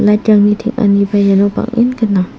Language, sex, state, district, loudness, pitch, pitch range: Garo, female, Meghalaya, South Garo Hills, -12 LUFS, 210 Hz, 200-225 Hz